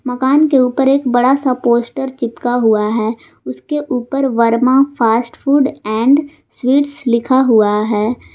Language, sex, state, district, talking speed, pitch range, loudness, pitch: Hindi, female, Jharkhand, Garhwa, 145 wpm, 230-275 Hz, -14 LUFS, 250 Hz